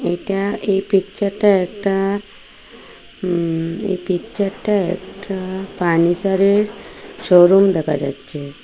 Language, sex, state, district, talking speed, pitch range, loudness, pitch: Bengali, female, Assam, Hailakandi, 105 wpm, 175-200 Hz, -18 LUFS, 190 Hz